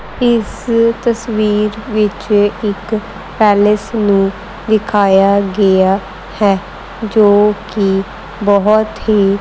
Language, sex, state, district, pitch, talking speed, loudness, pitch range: Punjabi, female, Punjab, Kapurthala, 210 Hz, 85 wpm, -13 LUFS, 200-220 Hz